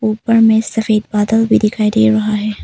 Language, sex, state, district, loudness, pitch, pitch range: Hindi, female, Arunachal Pradesh, Papum Pare, -13 LUFS, 215 Hz, 215-220 Hz